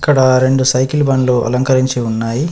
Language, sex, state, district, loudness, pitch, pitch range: Telugu, male, Telangana, Adilabad, -13 LUFS, 130 Hz, 125-135 Hz